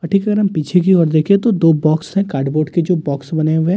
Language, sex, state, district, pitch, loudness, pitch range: Hindi, male, Delhi, New Delhi, 165 Hz, -15 LUFS, 155-190 Hz